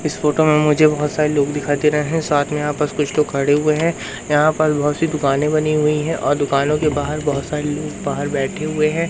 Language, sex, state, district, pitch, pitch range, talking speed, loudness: Hindi, male, Madhya Pradesh, Umaria, 150 Hz, 145-155 Hz, 255 wpm, -18 LUFS